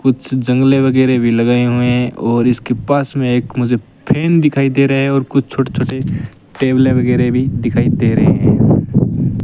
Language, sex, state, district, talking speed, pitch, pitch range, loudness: Hindi, male, Rajasthan, Bikaner, 185 wpm, 130 Hz, 120-135 Hz, -14 LUFS